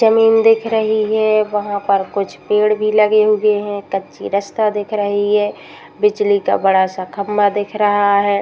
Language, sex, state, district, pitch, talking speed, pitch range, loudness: Hindi, female, Uttar Pradesh, Muzaffarnagar, 210 Hz, 180 wpm, 200-215 Hz, -16 LUFS